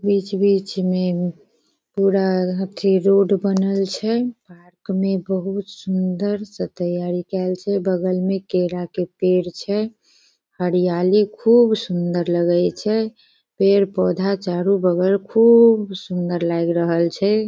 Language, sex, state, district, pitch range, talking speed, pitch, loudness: Maithili, female, Bihar, Sitamarhi, 180-200 Hz, 115 wpm, 190 Hz, -19 LUFS